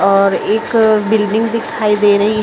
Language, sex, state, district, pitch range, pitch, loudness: Hindi, female, Chhattisgarh, Raigarh, 210-220 Hz, 215 Hz, -13 LUFS